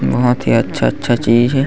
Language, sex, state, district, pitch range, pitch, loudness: Chhattisgarhi, male, Chhattisgarh, Sarguja, 115-125 Hz, 120 Hz, -15 LUFS